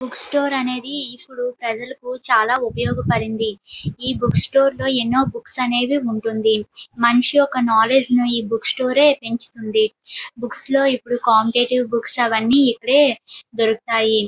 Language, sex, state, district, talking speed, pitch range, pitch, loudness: Telugu, female, Andhra Pradesh, Srikakulam, 130 wpm, 225-265 Hz, 245 Hz, -18 LUFS